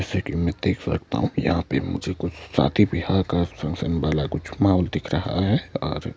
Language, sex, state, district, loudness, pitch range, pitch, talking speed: Hindi, male, Madhya Pradesh, Bhopal, -24 LUFS, 80-95 Hz, 85 Hz, 225 wpm